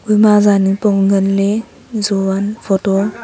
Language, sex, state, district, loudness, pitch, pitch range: Wancho, female, Arunachal Pradesh, Longding, -14 LUFS, 200 Hz, 195-210 Hz